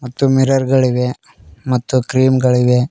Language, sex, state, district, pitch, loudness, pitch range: Kannada, male, Karnataka, Koppal, 130 Hz, -15 LUFS, 125-130 Hz